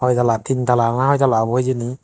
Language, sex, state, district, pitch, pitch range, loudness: Chakma, male, Tripura, Dhalai, 125 Hz, 120-130 Hz, -17 LUFS